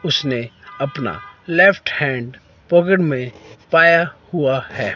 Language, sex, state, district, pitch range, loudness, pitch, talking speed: Hindi, male, Himachal Pradesh, Shimla, 120-170 Hz, -17 LUFS, 135 Hz, 110 wpm